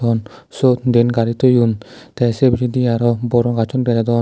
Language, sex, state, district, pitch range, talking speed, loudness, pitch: Chakma, male, Tripura, Dhalai, 115-125 Hz, 170 wpm, -16 LUFS, 120 Hz